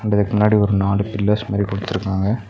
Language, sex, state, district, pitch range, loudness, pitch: Tamil, male, Tamil Nadu, Nilgiris, 100-105 Hz, -19 LUFS, 100 Hz